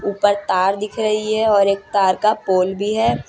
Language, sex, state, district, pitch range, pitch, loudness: Hindi, female, Gujarat, Valsad, 195-215 Hz, 205 Hz, -18 LUFS